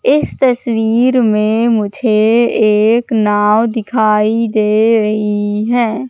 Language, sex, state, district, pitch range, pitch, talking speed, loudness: Hindi, female, Madhya Pradesh, Katni, 210-235 Hz, 220 Hz, 100 wpm, -13 LUFS